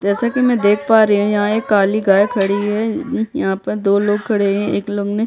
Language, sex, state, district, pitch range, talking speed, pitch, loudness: Hindi, female, Chhattisgarh, Bastar, 200-220 Hz, 275 wpm, 205 Hz, -16 LUFS